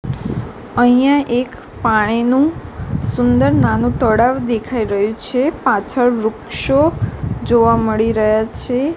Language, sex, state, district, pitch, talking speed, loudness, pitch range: Gujarati, female, Gujarat, Gandhinagar, 230 Hz, 100 wpm, -16 LUFS, 215-255 Hz